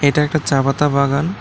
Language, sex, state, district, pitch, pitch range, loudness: Bengali, male, Tripura, West Tripura, 145 Hz, 140-150 Hz, -16 LUFS